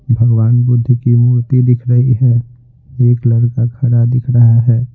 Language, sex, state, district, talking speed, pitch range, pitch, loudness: Hindi, male, Bihar, Patna, 160 wpm, 120-125 Hz, 120 Hz, -12 LUFS